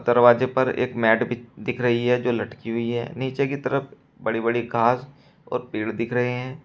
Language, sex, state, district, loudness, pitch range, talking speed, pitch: Hindi, male, Uttar Pradesh, Shamli, -23 LUFS, 120-130 Hz, 205 wpm, 120 Hz